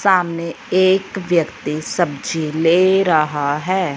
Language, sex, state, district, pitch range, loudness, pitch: Hindi, male, Punjab, Fazilka, 155-185 Hz, -17 LUFS, 170 Hz